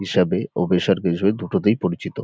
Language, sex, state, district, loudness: Bengali, male, West Bengal, North 24 Parganas, -20 LUFS